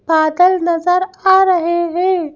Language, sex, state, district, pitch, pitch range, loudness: Hindi, female, Madhya Pradesh, Bhopal, 355 Hz, 335-370 Hz, -14 LUFS